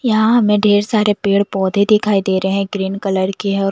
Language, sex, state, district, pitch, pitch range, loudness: Hindi, female, Bihar, Patna, 200 Hz, 195-210 Hz, -15 LUFS